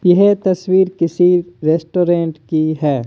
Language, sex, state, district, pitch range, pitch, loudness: Hindi, male, Rajasthan, Bikaner, 160-185 Hz, 175 Hz, -15 LUFS